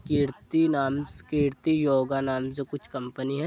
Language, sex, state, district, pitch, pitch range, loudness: Hindi, male, Bihar, Jahanabad, 140 Hz, 135-150 Hz, -27 LUFS